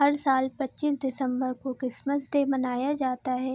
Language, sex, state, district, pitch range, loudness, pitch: Hindi, female, Bihar, Araria, 255-280 Hz, -28 LUFS, 265 Hz